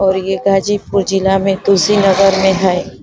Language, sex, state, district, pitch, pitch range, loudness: Hindi, female, Uttar Pradesh, Ghazipur, 195 Hz, 190-195 Hz, -13 LUFS